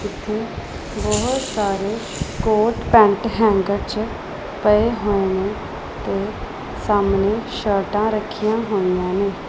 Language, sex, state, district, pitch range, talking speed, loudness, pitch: Punjabi, female, Punjab, Pathankot, 200-220 Hz, 100 wpm, -20 LUFS, 210 Hz